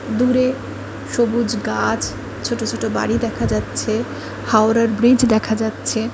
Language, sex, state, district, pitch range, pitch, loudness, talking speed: Bengali, female, West Bengal, Kolkata, 220-240 Hz, 230 Hz, -19 LUFS, 125 wpm